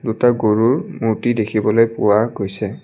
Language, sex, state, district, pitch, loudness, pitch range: Assamese, male, Assam, Kamrup Metropolitan, 115 Hz, -17 LUFS, 110-120 Hz